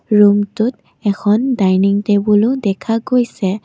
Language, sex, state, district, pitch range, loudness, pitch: Assamese, female, Assam, Kamrup Metropolitan, 200-230 Hz, -15 LUFS, 210 Hz